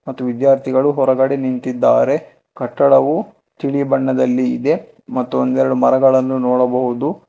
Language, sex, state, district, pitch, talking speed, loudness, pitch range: Kannada, male, Karnataka, Bangalore, 130 Hz, 100 wpm, -16 LUFS, 125-140 Hz